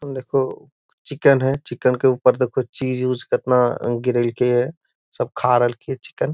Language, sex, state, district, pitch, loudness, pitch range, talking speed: Magahi, male, Bihar, Gaya, 125 Hz, -20 LUFS, 125-135 Hz, 180 wpm